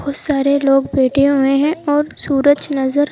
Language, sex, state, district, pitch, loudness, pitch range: Hindi, female, Madhya Pradesh, Bhopal, 280 Hz, -15 LUFS, 275-290 Hz